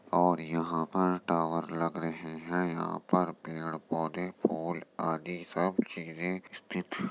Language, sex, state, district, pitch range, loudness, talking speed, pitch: Hindi, male, Uttar Pradesh, Jyotiba Phule Nagar, 80-90 Hz, -33 LUFS, 145 wpm, 85 Hz